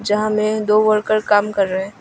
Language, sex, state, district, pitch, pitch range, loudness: Hindi, female, Arunachal Pradesh, Longding, 210 Hz, 205-215 Hz, -17 LUFS